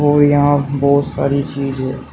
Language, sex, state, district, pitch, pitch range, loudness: Hindi, male, Uttar Pradesh, Shamli, 140 Hz, 140-145 Hz, -15 LUFS